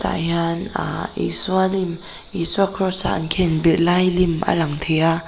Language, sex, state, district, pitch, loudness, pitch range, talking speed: Mizo, female, Mizoram, Aizawl, 170 Hz, -19 LUFS, 165-190 Hz, 180 wpm